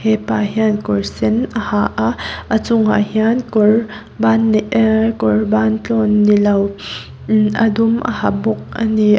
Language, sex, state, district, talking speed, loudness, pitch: Mizo, female, Mizoram, Aizawl, 175 wpm, -15 LUFS, 210 Hz